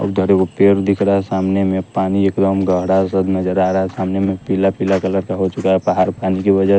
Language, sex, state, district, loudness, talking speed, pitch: Hindi, male, Bihar, West Champaran, -16 LUFS, 255 wpm, 95 Hz